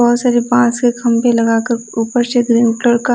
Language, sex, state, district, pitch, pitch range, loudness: Hindi, female, Delhi, New Delhi, 240 Hz, 235-245 Hz, -14 LUFS